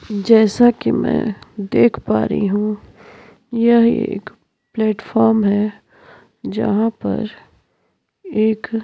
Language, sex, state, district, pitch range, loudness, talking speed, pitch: Hindi, female, Uttarakhand, Tehri Garhwal, 205-230 Hz, -17 LUFS, 100 wpm, 220 Hz